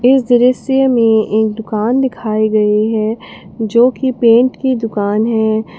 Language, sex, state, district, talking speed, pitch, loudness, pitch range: Hindi, female, Jharkhand, Palamu, 145 wpm, 225 Hz, -13 LUFS, 215-250 Hz